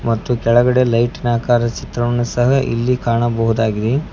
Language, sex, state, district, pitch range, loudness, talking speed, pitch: Kannada, male, Karnataka, Koppal, 115-125 Hz, -16 LUFS, 130 wpm, 120 Hz